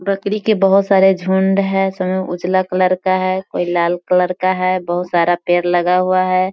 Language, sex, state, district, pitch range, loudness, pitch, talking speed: Hindi, female, Bihar, Sitamarhi, 180-190 Hz, -16 LUFS, 185 Hz, 200 wpm